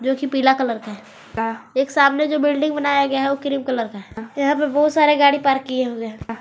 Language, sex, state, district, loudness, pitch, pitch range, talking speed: Hindi, female, Jharkhand, Garhwa, -19 LUFS, 275 Hz, 240-285 Hz, 250 wpm